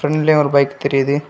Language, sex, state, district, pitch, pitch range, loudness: Tamil, male, Tamil Nadu, Kanyakumari, 140 Hz, 140-150 Hz, -15 LUFS